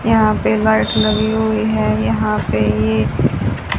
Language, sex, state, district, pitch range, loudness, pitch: Hindi, female, Haryana, Charkhi Dadri, 105-110 Hz, -16 LUFS, 110 Hz